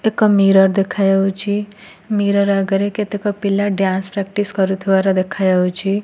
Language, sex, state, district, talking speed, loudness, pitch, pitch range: Odia, female, Odisha, Nuapada, 110 wpm, -16 LUFS, 195 Hz, 195-205 Hz